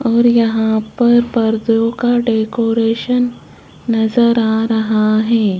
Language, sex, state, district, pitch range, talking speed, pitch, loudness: Hindi, female, Rajasthan, Jaipur, 220-240 Hz, 105 wpm, 230 Hz, -14 LUFS